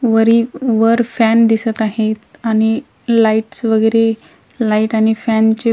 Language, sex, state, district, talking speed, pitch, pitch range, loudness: Marathi, female, Maharashtra, Washim, 125 wpm, 225 Hz, 220-230 Hz, -14 LUFS